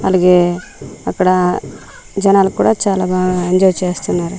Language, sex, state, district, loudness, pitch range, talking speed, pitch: Telugu, female, Andhra Pradesh, Manyam, -14 LUFS, 180-190 Hz, 110 wpm, 185 Hz